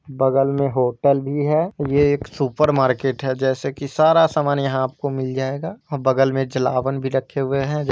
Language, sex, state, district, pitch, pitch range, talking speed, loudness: Hindi, male, Bihar, East Champaran, 135 Hz, 130-145 Hz, 195 wpm, -20 LUFS